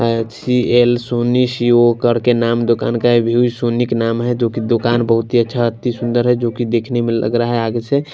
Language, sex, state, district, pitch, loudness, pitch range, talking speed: Hindi, male, Punjab, Kapurthala, 120 Hz, -16 LUFS, 115-120 Hz, 205 wpm